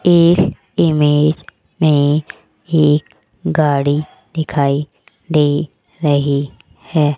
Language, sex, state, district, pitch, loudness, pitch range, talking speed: Hindi, female, Rajasthan, Jaipur, 150 Hz, -16 LUFS, 145-160 Hz, 75 wpm